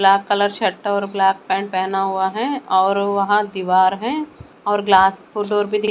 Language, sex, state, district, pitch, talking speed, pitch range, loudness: Hindi, female, Maharashtra, Mumbai Suburban, 200 Hz, 170 wpm, 190-205 Hz, -18 LUFS